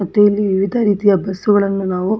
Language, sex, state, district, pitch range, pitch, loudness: Kannada, female, Karnataka, Dakshina Kannada, 195-205 Hz, 200 Hz, -15 LUFS